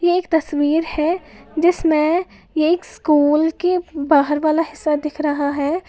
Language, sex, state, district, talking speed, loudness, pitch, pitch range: Hindi, female, Uttar Pradesh, Lalitpur, 130 wpm, -18 LUFS, 315 Hz, 295-335 Hz